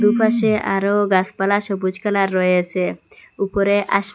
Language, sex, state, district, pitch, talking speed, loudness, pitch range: Bengali, female, Assam, Hailakandi, 200 Hz, 115 wpm, -18 LUFS, 190-205 Hz